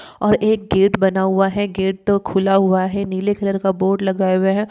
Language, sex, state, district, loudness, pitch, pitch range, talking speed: Hindi, female, Uttar Pradesh, Hamirpur, -17 LUFS, 195 Hz, 190-205 Hz, 230 wpm